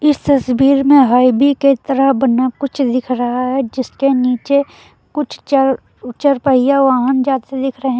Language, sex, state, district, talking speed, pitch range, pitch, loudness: Hindi, female, Uttar Pradesh, Lucknow, 160 wpm, 255-275 Hz, 270 Hz, -14 LUFS